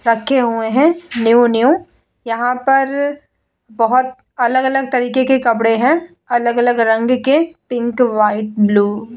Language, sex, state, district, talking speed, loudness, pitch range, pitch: Hindi, female, Bihar, Vaishali, 130 wpm, -15 LUFS, 230-270 Hz, 245 Hz